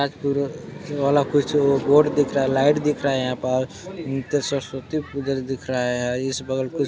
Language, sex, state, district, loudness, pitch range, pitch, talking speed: Hindi, male, Chhattisgarh, Balrampur, -22 LUFS, 130-145 Hz, 140 Hz, 220 wpm